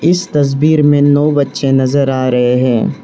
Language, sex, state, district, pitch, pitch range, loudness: Hindi, male, Arunachal Pradesh, Lower Dibang Valley, 140 Hz, 130-150 Hz, -12 LUFS